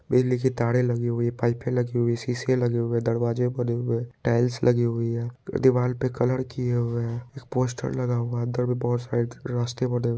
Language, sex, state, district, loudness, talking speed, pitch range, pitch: Hindi, male, Bihar, Saharsa, -25 LUFS, 220 wpm, 120-125 Hz, 120 Hz